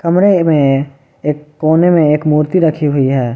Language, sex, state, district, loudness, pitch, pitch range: Hindi, male, Jharkhand, Ranchi, -12 LUFS, 150 Hz, 140-165 Hz